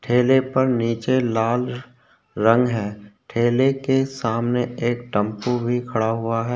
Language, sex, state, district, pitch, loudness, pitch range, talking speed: Hindi, male, Chhattisgarh, Korba, 120 Hz, -21 LUFS, 115-125 Hz, 135 wpm